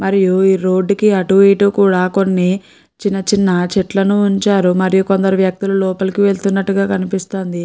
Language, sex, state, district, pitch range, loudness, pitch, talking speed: Telugu, female, Andhra Pradesh, Guntur, 185-195 Hz, -14 LUFS, 195 Hz, 140 wpm